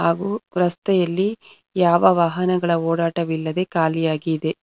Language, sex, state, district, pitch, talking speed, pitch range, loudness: Kannada, female, Karnataka, Bangalore, 170 Hz, 80 wpm, 165-185 Hz, -20 LUFS